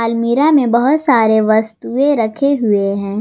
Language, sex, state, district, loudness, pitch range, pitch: Hindi, female, Jharkhand, Garhwa, -14 LUFS, 220-275 Hz, 230 Hz